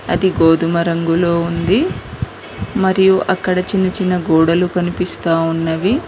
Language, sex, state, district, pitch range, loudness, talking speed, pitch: Telugu, female, Telangana, Mahabubabad, 165-185 Hz, -15 LUFS, 110 wpm, 175 Hz